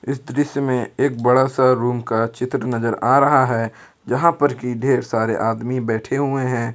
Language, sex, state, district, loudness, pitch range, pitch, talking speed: Hindi, male, Jharkhand, Ranchi, -19 LUFS, 115-135 Hz, 125 Hz, 195 wpm